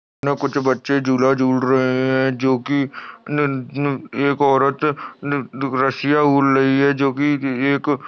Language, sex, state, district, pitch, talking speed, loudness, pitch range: Hindi, male, Uttar Pradesh, Budaun, 135 Hz, 125 wpm, -18 LUFS, 130-140 Hz